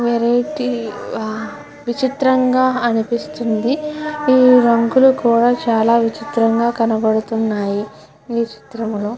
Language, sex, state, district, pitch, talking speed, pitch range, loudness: Telugu, female, Andhra Pradesh, Guntur, 235 Hz, 90 wpm, 225-255 Hz, -16 LUFS